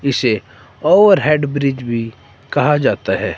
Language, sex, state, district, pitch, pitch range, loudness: Hindi, male, Himachal Pradesh, Shimla, 140 Hz, 115-145 Hz, -15 LUFS